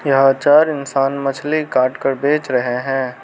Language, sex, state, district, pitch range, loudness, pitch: Hindi, male, Arunachal Pradesh, Lower Dibang Valley, 135-145 Hz, -16 LUFS, 135 Hz